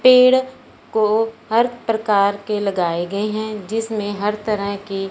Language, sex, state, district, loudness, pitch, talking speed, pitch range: Hindi, male, Punjab, Fazilka, -19 LUFS, 215 Hz, 140 wpm, 200-225 Hz